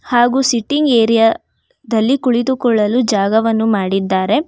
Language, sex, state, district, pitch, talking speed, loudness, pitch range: Kannada, female, Karnataka, Bangalore, 230 Hz, 95 wpm, -14 LUFS, 220-255 Hz